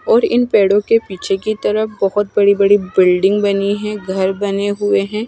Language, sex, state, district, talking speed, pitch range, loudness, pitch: Hindi, female, Punjab, Kapurthala, 195 wpm, 195-210 Hz, -15 LUFS, 205 Hz